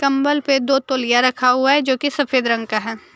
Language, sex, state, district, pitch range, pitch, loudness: Hindi, female, Jharkhand, Deoghar, 245-275 Hz, 260 Hz, -17 LUFS